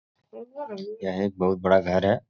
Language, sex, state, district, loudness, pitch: Hindi, male, Bihar, Supaul, -25 LUFS, 100 Hz